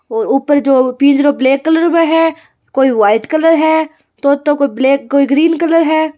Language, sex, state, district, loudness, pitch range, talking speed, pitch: Hindi, female, Rajasthan, Churu, -12 LUFS, 275-325 Hz, 185 wpm, 295 Hz